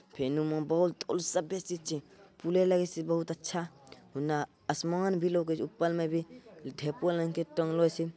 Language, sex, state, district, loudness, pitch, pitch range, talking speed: Angika, male, Bihar, Bhagalpur, -32 LUFS, 165 Hz, 155-180 Hz, 140 wpm